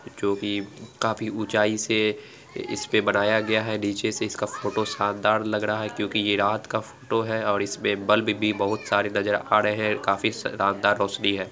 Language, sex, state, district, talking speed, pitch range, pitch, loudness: Angika, female, Bihar, Araria, 185 wpm, 100-110 Hz, 105 Hz, -24 LUFS